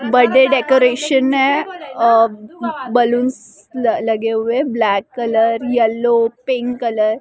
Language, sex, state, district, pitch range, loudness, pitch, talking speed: Hindi, female, Maharashtra, Mumbai Suburban, 225-255 Hz, -16 LUFS, 240 Hz, 115 wpm